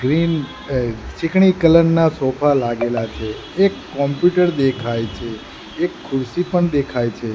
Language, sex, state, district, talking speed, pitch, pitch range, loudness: Gujarati, male, Gujarat, Gandhinagar, 140 wpm, 140 Hz, 120-170 Hz, -18 LUFS